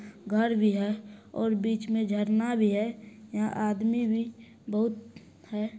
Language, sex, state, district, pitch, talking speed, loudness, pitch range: Hindi, female, Bihar, Supaul, 220 Hz, 145 wpm, -29 LUFS, 210-225 Hz